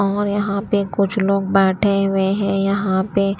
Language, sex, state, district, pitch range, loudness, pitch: Hindi, female, Haryana, Rohtak, 195-200 Hz, -18 LUFS, 195 Hz